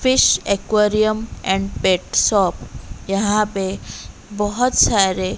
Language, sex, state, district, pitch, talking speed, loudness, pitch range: Hindi, female, Odisha, Malkangiri, 205 Hz, 100 wpm, -18 LUFS, 195-215 Hz